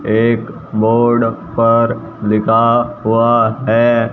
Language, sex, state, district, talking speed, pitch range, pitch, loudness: Hindi, male, Haryana, Jhajjar, 85 wpm, 110-115 Hz, 115 Hz, -14 LUFS